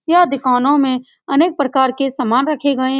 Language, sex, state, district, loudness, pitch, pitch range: Hindi, female, Bihar, Saran, -15 LUFS, 275 Hz, 260-300 Hz